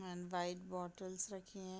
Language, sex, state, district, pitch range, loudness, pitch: Hindi, female, Bihar, Gopalganj, 180-190 Hz, -45 LUFS, 185 Hz